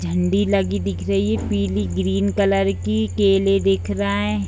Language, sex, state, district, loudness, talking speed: Hindi, female, Bihar, Gopalganj, -20 LUFS, 175 wpm